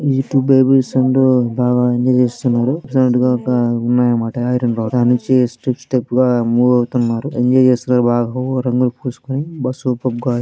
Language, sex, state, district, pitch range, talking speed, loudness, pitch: Telugu, male, Andhra Pradesh, Krishna, 120-130 Hz, 110 wpm, -15 LUFS, 125 Hz